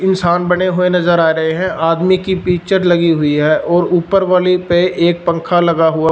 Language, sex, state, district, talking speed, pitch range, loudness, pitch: Hindi, male, Punjab, Fazilka, 205 wpm, 165-180 Hz, -13 LUFS, 175 Hz